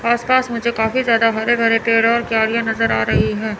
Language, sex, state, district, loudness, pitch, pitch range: Hindi, male, Chandigarh, Chandigarh, -16 LUFS, 230 Hz, 220-235 Hz